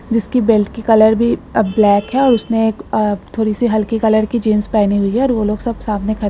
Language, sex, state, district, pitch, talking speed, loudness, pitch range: Hindi, female, Bihar, Bhagalpur, 220 Hz, 255 wpm, -15 LUFS, 210-230 Hz